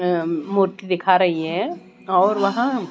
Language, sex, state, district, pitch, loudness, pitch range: Hindi, female, Odisha, Malkangiri, 185 Hz, -20 LUFS, 175-200 Hz